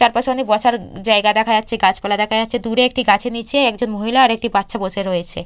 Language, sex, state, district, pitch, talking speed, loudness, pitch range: Bengali, female, West Bengal, Purulia, 225 Hz, 220 wpm, -17 LUFS, 205-245 Hz